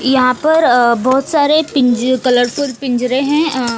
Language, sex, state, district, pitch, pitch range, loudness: Hindi, female, Bihar, Kaimur, 260 Hz, 245-290 Hz, -13 LUFS